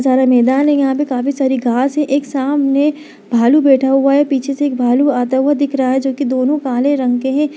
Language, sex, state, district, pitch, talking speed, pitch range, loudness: Hindi, female, Bihar, Bhagalpur, 270 Hz, 255 wpm, 260-285 Hz, -14 LUFS